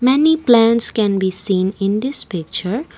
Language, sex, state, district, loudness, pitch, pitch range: English, female, Assam, Kamrup Metropolitan, -16 LUFS, 215 Hz, 190-250 Hz